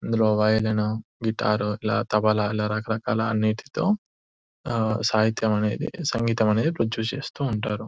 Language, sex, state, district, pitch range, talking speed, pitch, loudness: Telugu, male, Telangana, Nalgonda, 105-115 Hz, 120 wpm, 110 Hz, -24 LUFS